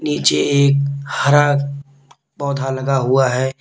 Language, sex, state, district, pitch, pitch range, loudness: Hindi, male, Uttar Pradesh, Lalitpur, 140 Hz, 130-140 Hz, -17 LUFS